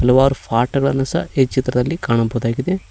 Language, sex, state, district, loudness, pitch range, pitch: Kannada, male, Karnataka, Koppal, -18 LUFS, 120-140 Hz, 130 Hz